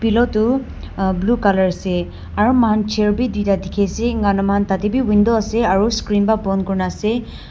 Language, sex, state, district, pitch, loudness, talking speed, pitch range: Nagamese, female, Nagaland, Dimapur, 210 Hz, -18 LUFS, 205 wpm, 195-225 Hz